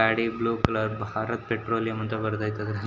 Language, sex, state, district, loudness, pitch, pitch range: Kannada, male, Karnataka, Shimoga, -28 LUFS, 110 Hz, 110-115 Hz